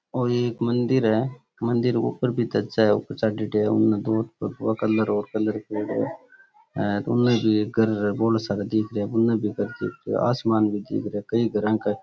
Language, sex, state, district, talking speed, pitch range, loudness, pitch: Rajasthani, male, Rajasthan, Churu, 80 wpm, 105-120 Hz, -24 LUFS, 110 Hz